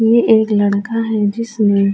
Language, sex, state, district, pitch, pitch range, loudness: Urdu, female, Uttar Pradesh, Budaun, 220 Hz, 205-225 Hz, -15 LUFS